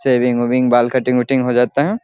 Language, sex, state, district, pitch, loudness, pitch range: Hindi, male, Bihar, Sitamarhi, 125 Hz, -15 LUFS, 125-130 Hz